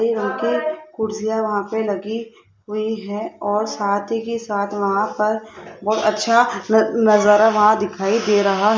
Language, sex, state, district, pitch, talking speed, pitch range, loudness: Hindi, female, Rajasthan, Jaipur, 215 Hz, 135 wpm, 205-220 Hz, -19 LUFS